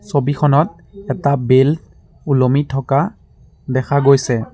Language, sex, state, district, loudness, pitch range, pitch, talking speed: Assamese, male, Assam, Sonitpur, -16 LUFS, 135-150 Hz, 140 Hz, 90 wpm